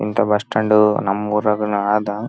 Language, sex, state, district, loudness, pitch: Kannada, male, Karnataka, Raichur, -17 LUFS, 105 Hz